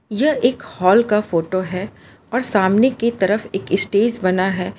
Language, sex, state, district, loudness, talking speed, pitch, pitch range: Hindi, female, Gujarat, Valsad, -18 LUFS, 175 wpm, 205 Hz, 185-235 Hz